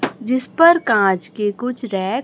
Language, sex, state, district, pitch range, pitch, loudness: Hindi, male, Chhattisgarh, Raipur, 205-255 Hz, 240 Hz, -17 LUFS